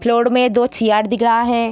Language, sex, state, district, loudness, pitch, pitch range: Hindi, female, Bihar, Begusarai, -15 LUFS, 235 Hz, 230-240 Hz